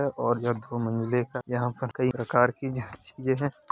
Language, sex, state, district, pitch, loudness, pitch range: Hindi, male, Uttar Pradesh, Hamirpur, 125 Hz, -28 LUFS, 120-130 Hz